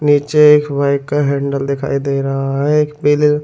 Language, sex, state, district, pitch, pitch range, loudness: Hindi, male, Delhi, New Delhi, 140 Hz, 140-150 Hz, -14 LUFS